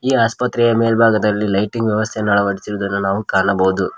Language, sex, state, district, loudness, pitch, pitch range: Kannada, male, Karnataka, Koppal, -17 LUFS, 105 Hz, 100-115 Hz